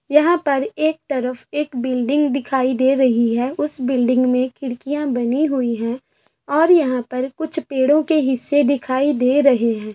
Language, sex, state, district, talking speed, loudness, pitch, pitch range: Hindi, female, Bihar, Sitamarhi, 170 wpm, -18 LUFS, 265 Hz, 250-290 Hz